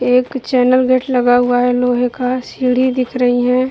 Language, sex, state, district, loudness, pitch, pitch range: Hindi, female, Uttar Pradesh, Budaun, -14 LUFS, 250 Hz, 245-255 Hz